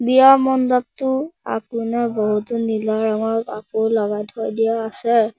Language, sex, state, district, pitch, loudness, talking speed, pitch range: Assamese, male, Assam, Sonitpur, 225 Hz, -19 LUFS, 120 wpm, 220-250 Hz